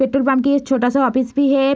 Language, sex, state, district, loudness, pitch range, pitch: Hindi, female, Bihar, Madhepura, -16 LUFS, 260-275 Hz, 270 Hz